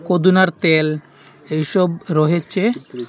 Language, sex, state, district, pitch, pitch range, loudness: Bengali, male, Assam, Hailakandi, 170 Hz, 155-185 Hz, -17 LUFS